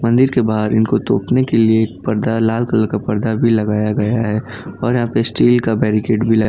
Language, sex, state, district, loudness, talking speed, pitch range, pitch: Hindi, male, Gujarat, Valsad, -16 LUFS, 230 wpm, 110-115 Hz, 110 Hz